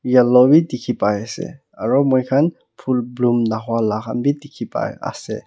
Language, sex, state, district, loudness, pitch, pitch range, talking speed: Nagamese, male, Nagaland, Kohima, -18 LUFS, 125 Hz, 115-140 Hz, 175 wpm